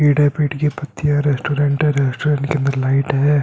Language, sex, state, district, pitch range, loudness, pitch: Hindi, male, Uttar Pradesh, Hamirpur, 140-150 Hz, -18 LUFS, 145 Hz